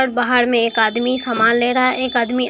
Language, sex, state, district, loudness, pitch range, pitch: Hindi, male, Bihar, Katihar, -16 LUFS, 235-255 Hz, 245 Hz